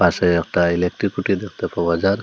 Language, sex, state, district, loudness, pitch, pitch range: Bengali, male, Assam, Hailakandi, -20 LUFS, 90 Hz, 85-100 Hz